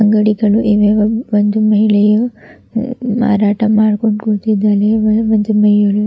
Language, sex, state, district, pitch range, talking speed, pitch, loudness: Kannada, female, Karnataka, Raichur, 210-220 Hz, 110 wpm, 215 Hz, -13 LUFS